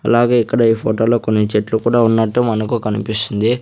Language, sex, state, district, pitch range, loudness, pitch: Telugu, male, Andhra Pradesh, Sri Satya Sai, 110-120 Hz, -16 LUFS, 115 Hz